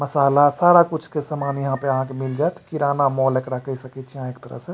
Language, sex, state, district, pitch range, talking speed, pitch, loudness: Maithili, male, Bihar, Supaul, 130-145 Hz, 280 wpm, 140 Hz, -20 LUFS